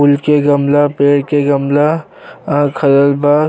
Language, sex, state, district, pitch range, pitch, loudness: Bhojpuri, male, Uttar Pradesh, Deoria, 140-145 Hz, 145 Hz, -12 LUFS